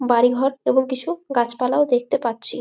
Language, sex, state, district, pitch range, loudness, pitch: Bengali, female, West Bengal, Malda, 240-270 Hz, -20 LUFS, 250 Hz